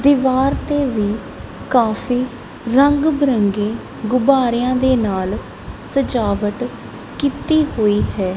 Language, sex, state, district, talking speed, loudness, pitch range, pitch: Punjabi, female, Punjab, Kapurthala, 95 wpm, -18 LUFS, 215-275 Hz, 250 Hz